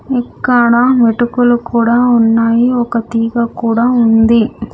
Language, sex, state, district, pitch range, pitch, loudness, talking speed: Telugu, female, Andhra Pradesh, Sri Satya Sai, 230-245 Hz, 235 Hz, -11 LUFS, 100 wpm